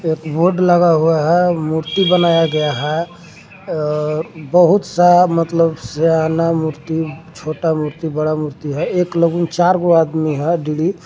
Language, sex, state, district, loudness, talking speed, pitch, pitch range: Hindi, male, Jharkhand, Garhwa, -16 LUFS, 145 wpm, 165 Hz, 155-175 Hz